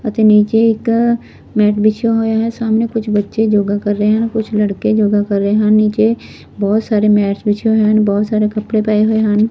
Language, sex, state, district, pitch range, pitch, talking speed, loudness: Punjabi, female, Punjab, Fazilka, 210-220 Hz, 215 Hz, 210 wpm, -14 LUFS